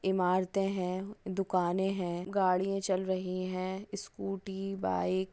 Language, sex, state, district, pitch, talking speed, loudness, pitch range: Hindi, female, West Bengal, Dakshin Dinajpur, 190 Hz, 125 wpm, -33 LUFS, 185-195 Hz